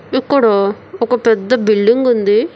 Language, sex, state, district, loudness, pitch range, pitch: Telugu, female, Telangana, Hyderabad, -13 LUFS, 210-245 Hz, 225 Hz